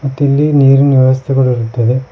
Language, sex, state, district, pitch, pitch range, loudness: Kannada, male, Karnataka, Koppal, 135 Hz, 130-140 Hz, -11 LUFS